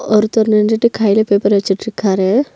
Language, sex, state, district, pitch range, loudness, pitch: Tamil, female, Tamil Nadu, Nilgiris, 200-225 Hz, -14 LUFS, 215 Hz